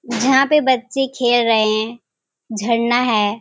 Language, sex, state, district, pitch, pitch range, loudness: Hindi, female, Bihar, Kishanganj, 240 Hz, 220-260 Hz, -16 LUFS